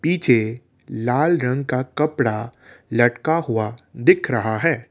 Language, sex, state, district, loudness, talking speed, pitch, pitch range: Hindi, male, Assam, Kamrup Metropolitan, -20 LUFS, 120 wpm, 125 Hz, 115-150 Hz